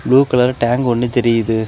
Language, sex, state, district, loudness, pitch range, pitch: Tamil, male, Tamil Nadu, Kanyakumari, -15 LUFS, 120-125 Hz, 120 Hz